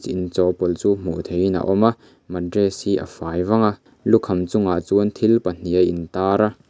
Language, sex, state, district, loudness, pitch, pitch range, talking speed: Mizo, male, Mizoram, Aizawl, -20 LUFS, 95 Hz, 90-105 Hz, 195 wpm